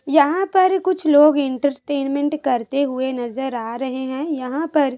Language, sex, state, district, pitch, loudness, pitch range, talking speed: Hindi, female, Chhattisgarh, Sukma, 280 Hz, -19 LUFS, 260-300 Hz, 155 wpm